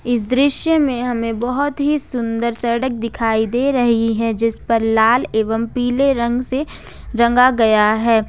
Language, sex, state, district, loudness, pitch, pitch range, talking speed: Hindi, female, Jharkhand, Ranchi, -17 LUFS, 235 Hz, 225-255 Hz, 160 wpm